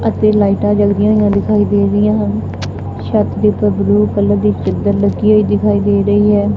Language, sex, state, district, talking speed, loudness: Punjabi, female, Punjab, Fazilka, 190 wpm, -13 LUFS